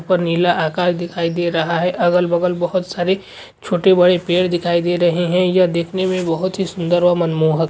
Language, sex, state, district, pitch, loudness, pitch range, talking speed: Hindi, male, Chhattisgarh, Sukma, 175 Hz, -17 LUFS, 170-180 Hz, 195 wpm